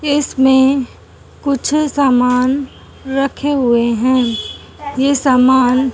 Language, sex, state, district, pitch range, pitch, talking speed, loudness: Hindi, female, Haryana, Charkhi Dadri, 255-280 Hz, 265 Hz, 80 wpm, -14 LUFS